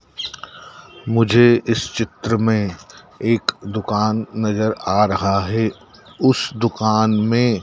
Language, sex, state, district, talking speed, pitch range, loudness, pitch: Hindi, male, Madhya Pradesh, Dhar, 100 wpm, 105-115 Hz, -18 LUFS, 110 Hz